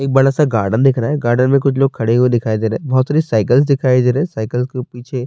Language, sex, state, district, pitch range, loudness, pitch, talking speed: Urdu, male, Bihar, Saharsa, 120-135 Hz, -15 LUFS, 125 Hz, 295 wpm